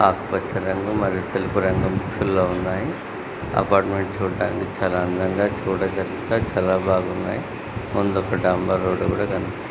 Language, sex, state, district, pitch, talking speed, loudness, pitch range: Telugu, male, Andhra Pradesh, Guntur, 95 Hz, 125 wpm, -23 LUFS, 95-100 Hz